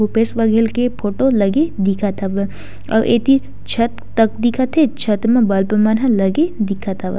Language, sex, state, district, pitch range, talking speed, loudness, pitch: Chhattisgarhi, female, Chhattisgarh, Sukma, 200-240 Hz, 185 wpm, -16 LUFS, 225 Hz